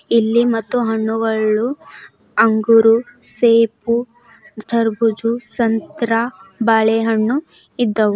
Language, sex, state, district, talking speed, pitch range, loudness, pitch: Kannada, female, Karnataka, Bidar, 65 wpm, 220-235 Hz, -17 LUFS, 230 Hz